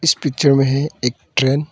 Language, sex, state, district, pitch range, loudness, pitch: Hindi, male, Arunachal Pradesh, Longding, 130-145 Hz, -17 LUFS, 140 Hz